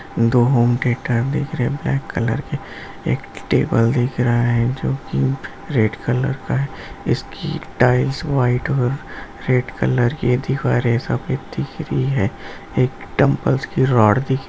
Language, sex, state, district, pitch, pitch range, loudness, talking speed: Hindi, male, Bihar, Gaya, 125 Hz, 115-130 Hz, -19 LUFS, 155 wpm